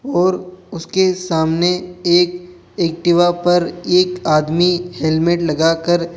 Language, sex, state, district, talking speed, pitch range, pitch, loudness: Hindi, male, Rajasthan, Jaipur, 105 wpm, 170-180 Hz, 175 Hz, -16 LUFS